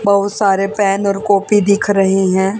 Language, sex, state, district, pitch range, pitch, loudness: Hindi, female, Haryana, Charkhi Dadri, 195-205 Hz, 200 Hz, -14 LUFS